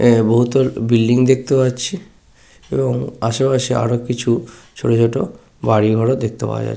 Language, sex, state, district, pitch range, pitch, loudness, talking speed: Bengali, male, West Bengal, Paschim Medinipur, 115-130 Hz, 120 Hz, -17 LUFS, 160 wpm